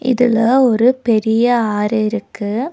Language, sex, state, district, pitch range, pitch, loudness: Tamil, female, Tamil Nadu, Nilgiris, 220-245 Hz, 230 Hz, -15 LUFS